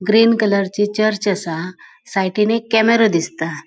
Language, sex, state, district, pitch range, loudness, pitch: Konkani, female, Goa, North and South Goa, 185-220 Hz, -17 LUFS, 205 Hz